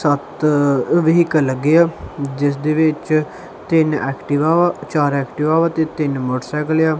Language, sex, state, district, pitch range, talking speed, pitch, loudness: Punjabi, male, Punjab, Kapurthala, 140-160 Hz, 130 wpm, 150 Hz, -17 LUFS